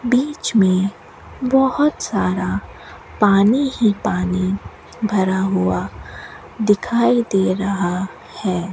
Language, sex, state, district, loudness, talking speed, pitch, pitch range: Hindi, female, Rajasthan, Bikaner, -18 LUFS, 90 wpm, 195 Hz, 180-235 Hz